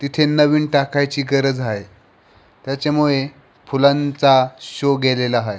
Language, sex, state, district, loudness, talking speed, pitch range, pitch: Marathi, male, Maharashtra, Pune, -17 LUFS, 105 wpm, 130-145 Hz, 140 Hz